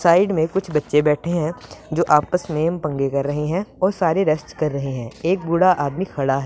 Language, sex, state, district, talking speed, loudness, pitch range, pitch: Hindi, female, Punjab, Pathankot, 225 wpm, -20 LUFS, 145-175 Hz, 155 Hz